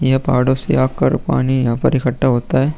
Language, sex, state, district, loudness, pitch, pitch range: Hindi, male, Bihar, Vaishali, -16 LUFS, 130 Hz, 125-130 Hz